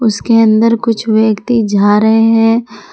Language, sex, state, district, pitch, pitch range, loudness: Hindi, female, Jharkhand, Palamu, 225 Hz, 215-230 Hz, -11 LUFS